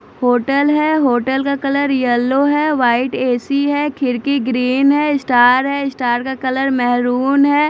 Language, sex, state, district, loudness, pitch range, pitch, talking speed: Hindi, female, Chandigarh, Chandigarh, -15 LUFS, 245-280 Hz, 270 Hz, 165 wpm